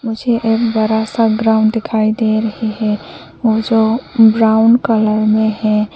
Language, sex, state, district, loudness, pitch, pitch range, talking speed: Hindi, female, Nagaland, Kohima, -14 LUFS, 220 Hz, 215-225 Hz, 140 wpm